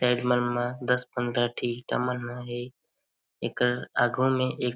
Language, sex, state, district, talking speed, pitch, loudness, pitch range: Chhattisgarhi, male, Chhattisgarh, Jashpur, 175 wpm, 125 Hz, -28 LUFS, 120-125 Hz